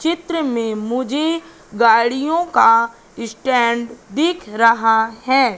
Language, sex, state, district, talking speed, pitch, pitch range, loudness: Hindi, female, Madhya Pradesh, Katni, 95 wpm, 235 Hz, 230-295 Hz, -17 LUFS